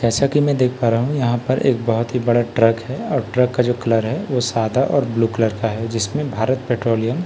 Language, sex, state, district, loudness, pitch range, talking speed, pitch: Hindi, male, Bihar, Katihar, -19 LUFS, 115-130 Hz, 270 wpm, 120 Hz